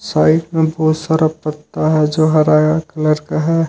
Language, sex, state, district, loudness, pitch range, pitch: Hindi, male, Jharkhand, Ranchi, -15 LUFS, 155-160 Hz, 155 Hz